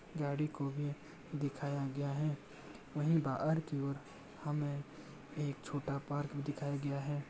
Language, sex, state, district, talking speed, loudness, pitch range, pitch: Hindi, male, Uttar Pradesh, Varanasi, 155 wpm, -39 LUFS, 140-150 Hz, 145 Hz